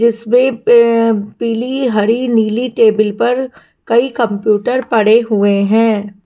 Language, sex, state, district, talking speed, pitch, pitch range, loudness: Hindi, female, Punjab, Kapurthala, 105 wpm, 230 Hz, 215-240 Hz, -13 LUFS